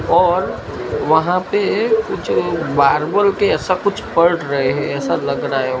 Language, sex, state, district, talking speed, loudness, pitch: Hindi, male, Gujarat, Gandhinagar, 155 wpm, -17 LUFS, 200 Hz